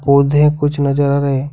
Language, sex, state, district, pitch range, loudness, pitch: Hindi, male, Jharkhand, Ranchi, 140-145 Hz, -14 LUFS, 140 Hz